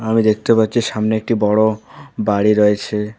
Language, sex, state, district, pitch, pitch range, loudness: Bengali, male, West Bengal, Alipurduar, 110 Hz, 105-110 Hz, -16 LUFS